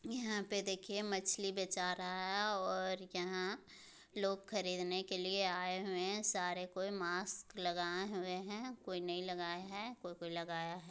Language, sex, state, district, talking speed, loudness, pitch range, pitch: Hindi, female, Bihar, Muzaffarpur, 160 wpm, -40 LUFS, 180-195 Hz, 185 Hz